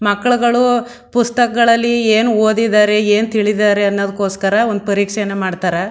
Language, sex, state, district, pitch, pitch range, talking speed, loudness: Kannada, female, Karnataka, Mysore, 215 Hz, 200-235 Hz, 100 wpm, -14 LUFS